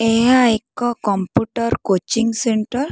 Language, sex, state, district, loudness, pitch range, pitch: Odia, female, Odisha, Khordha, -18 LUFS, 215-240 Hz, 230 Hz